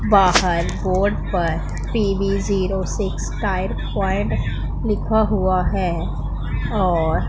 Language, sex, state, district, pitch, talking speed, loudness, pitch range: Hindi, female, Punjab, Pathankot, 195 Hz, 90 wpm, -21 LUFS, 185-205 Hz